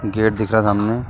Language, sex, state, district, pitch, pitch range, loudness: Hindi, male, Uttar Pradesh, Jalaun, 110 Hz, 105-110 Hz, -18 LUFS